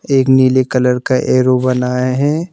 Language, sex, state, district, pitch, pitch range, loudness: Hindi, male, Madhya Pradesh, Bhopal, 130 Hz, 125-130 Hz, -13 LUFS